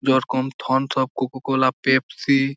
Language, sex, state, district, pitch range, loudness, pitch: Bengali, male, West Bengal, Malda, 130-135 Hz, -21 LUFS, 130 Hz